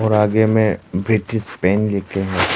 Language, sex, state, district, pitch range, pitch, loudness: Hindi, male, Arunachal Pradesh, Papum Pare, 95-110 Hz, 105 Hz, -18 LUFS